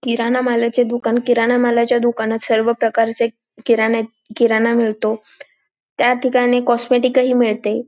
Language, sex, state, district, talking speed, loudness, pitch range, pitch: Marathi, female, Maharashtra, Dhule, 120 wpm, -16 LUFS, 225-245 Hz, 235 Hz